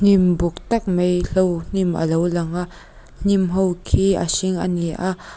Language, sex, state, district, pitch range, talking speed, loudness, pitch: Mizo, female, Mizoram, Aizawl, 175-190 Hz, 180 wpm, -20 LUFS, 180 Hz